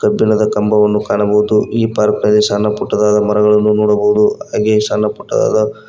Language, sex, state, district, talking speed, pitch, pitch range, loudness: Kannada, male, Karnataka, Koppal, 135 wpm, 105 Hz, 105-110 Hz, -13 LUFS